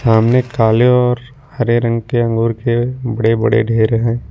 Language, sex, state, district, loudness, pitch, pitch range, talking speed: Hindi, male, Jharkhand, Ranchi, -15 LUFS, 115 Hz, 115-125 Hz, 165 wpm